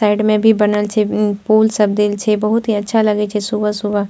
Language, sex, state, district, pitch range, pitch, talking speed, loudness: Maithili, female, Bihar, Purnia, 210-215 Hz, 210 Hz, 220 wpm, -15 LUFS